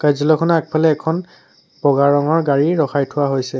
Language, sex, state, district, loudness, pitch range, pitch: Assamese, male, Assam, Sonitpur, -16 LUFS, 140-160 Hz, 150 Hz